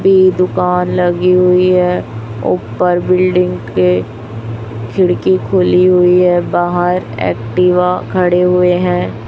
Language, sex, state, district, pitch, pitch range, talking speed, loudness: Hindi, female, Chhattisgarh, Raipur, 180 Hz, 115-180 Hz, 110 wpm, -12 LUFS